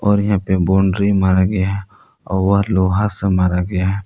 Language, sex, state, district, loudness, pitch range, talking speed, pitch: Hindi, male, Jharkhand, Palamu, -17 LUFS, 95-100 Hz, 175 wpm, 95 Hz